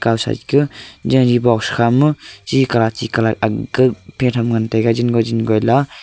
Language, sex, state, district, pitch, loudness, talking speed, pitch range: Wancho, male, Arunachal Pradesh, Longding, 120 Hz, -16 LUFS, 190 wpm, 115-130 Hz